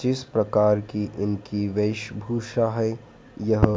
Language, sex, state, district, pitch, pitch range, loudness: Hindi, male, Madhya Pradesh, Dhar, 105 Hz, 105-115 Hz, -25 LUFS